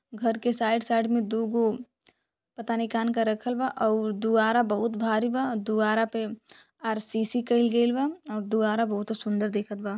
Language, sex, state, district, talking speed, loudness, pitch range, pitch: Bhojpuri, female, Uttar Pradesh, Deoria, 175 wpm, -27 LUFS, 215-235 Hz, 225 Hz